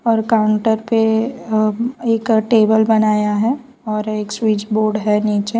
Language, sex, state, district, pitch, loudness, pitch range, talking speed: Hindi, female, Gujarat, Valsad, 220 Hz, -17 LUFS, 215-230 Hz, 160 wpm